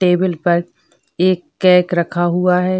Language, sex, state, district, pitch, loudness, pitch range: Hindi, female, Uttar Pradesh, Budaun, 180 Hz, -16 LUFS, 175-180 Hz